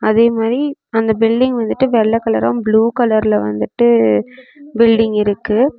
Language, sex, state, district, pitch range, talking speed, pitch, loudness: Tamil, female, Tamil Nadu, Namakkal, 210-240 Hz, 125 wpm, 225 Hz, -14 LUFS